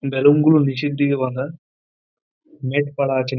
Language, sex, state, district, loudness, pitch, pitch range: Bengali, male, West Bengal, Purulia, -18 LUFS, 135 Hz, 130-145 Hz